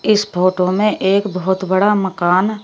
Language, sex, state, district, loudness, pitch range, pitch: Hindi, female, Uttar Pradesh, Shamli, -16 LUFS, 185-205 Hz, 190 Hz